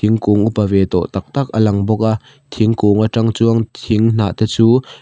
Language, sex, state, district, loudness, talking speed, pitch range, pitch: Mizo, male, Mizoram, Aizawl, -15 LUFS, 215 wpm, 105-115 Hz, 110 Hz